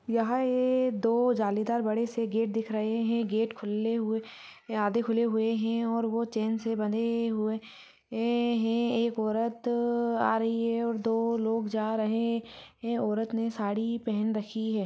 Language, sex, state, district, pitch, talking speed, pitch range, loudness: Hindi, female, Bihar, Muzaffarpur, 225 Hz, 175 wpm, 220-230 Hz, -29 LUFS